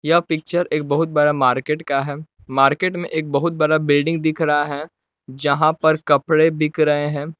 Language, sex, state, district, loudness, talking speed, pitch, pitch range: Hindi, male, Jharkhand, Palamu, -18 LUFS, 180 wpm, 150 Hz, 145-160 Hz